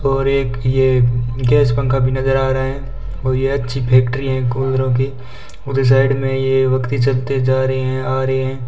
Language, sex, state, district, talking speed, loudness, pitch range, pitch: Hindi, male, Rajasthan, Bikaner, 200 wpm, -16 LUFS, 130-135 Hz, 130 Hz